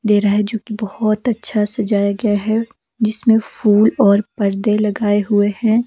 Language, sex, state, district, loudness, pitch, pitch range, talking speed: Hindi, female, Himachal Pradesh, Shimla, -16 LUFS, 210 Hz, 205-220 Hz, 165 wpm